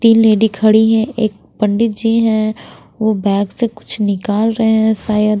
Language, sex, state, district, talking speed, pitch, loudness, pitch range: Hindi, female, Bihar, Patna, 175 wpm, 220 Hz, -14 LUFS, 210-225 Hz